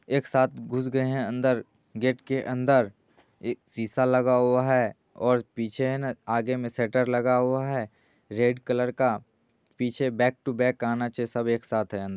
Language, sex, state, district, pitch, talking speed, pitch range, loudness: Maithili, male, Bihar, Supaul, 125 Hz, 175 wpm, 115-130 Hz, -26 LUFS